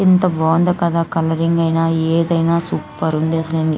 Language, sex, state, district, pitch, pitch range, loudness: Telugu, female, Andhra Pradesh, Anantapur, 165 Hz, 160-170 Hz, -17 LUFS